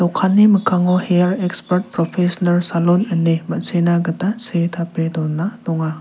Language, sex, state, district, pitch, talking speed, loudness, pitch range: Garo, male, Meghalaya, South Garo Hills, 175 Hz, 130 wpm, -17 LUFS, 170-185 Hz